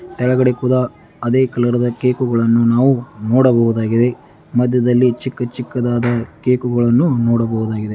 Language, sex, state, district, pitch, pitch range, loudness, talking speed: Kannada, male, Karnataka, Chamarajanagar, 120 Hz, 115-125 Hz, -16 LUFS, 90 wpm